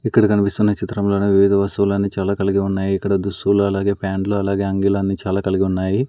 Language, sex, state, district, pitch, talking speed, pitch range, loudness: Telugu, male, Andhra Pradesh, Sri Satya Sai, 100 Hz, 175 wpm, 95-100 Hz, -18 LUFS